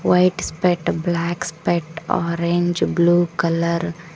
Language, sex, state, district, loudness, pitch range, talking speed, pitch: Kannada, female, Karnataka, Koppal, -20 LUFS, 170-175 Hz, 115 wpm, 170 Hz